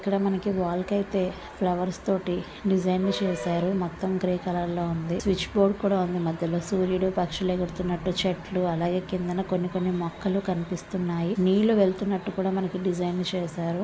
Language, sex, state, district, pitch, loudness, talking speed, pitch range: Telugu, female, Andhra Pradesh, Visakhapatnam, 185 Hz, -27 LUFS, 145 wpm, 175-190 Hz